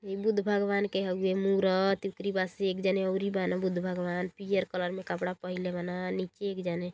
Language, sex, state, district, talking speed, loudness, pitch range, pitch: Bhojpuri, female, Uttar Pradesh, Gorakhpur, 215 wpm, -31 LUFS, 180-195 Hz, 190 Hz